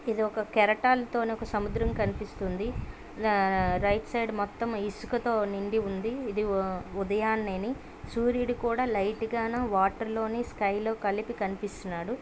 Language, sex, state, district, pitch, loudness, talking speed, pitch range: Telugu, female, Andhra Pradesh, Krishna, 215 Hz, -29 LUFS, 120 wpm, 200-230 Hz